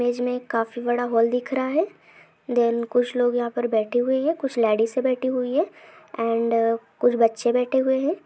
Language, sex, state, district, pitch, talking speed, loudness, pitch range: Hindi, female, Jharkhand, Sahebganj, 245 Hz, 195 wpm, -23 LUFS, 230-260 Hz